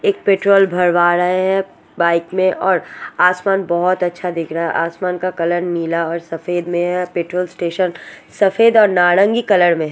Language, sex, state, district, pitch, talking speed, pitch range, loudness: Hindi, female, Odisha, Sambalpur, 180 Hz, 175 wpm, 170-190 Hz, -16 LUFS